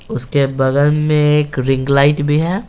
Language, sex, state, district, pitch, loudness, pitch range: Hindi, male, Bihar, Patna, 145 Hz, -15 LUFS, 135-150 Hz